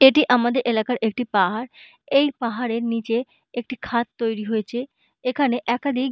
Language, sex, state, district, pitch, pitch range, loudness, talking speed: Bengali, female, West Bengal, Malda, 245 Hz, 230-260 Hz, -22 LUFS, 145 wpm